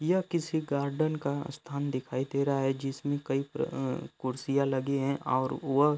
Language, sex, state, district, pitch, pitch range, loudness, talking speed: Hindi, male, Bihar, Gopalganj, 140 Hz, 135-150 Hz, -31 LUFS, 190 wpm